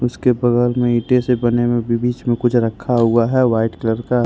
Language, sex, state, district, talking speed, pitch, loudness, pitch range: Hindi, male, Jharkhand, Ranchi, 240 wpm, 120 Hz, -17 LUFS, 115-125 Hz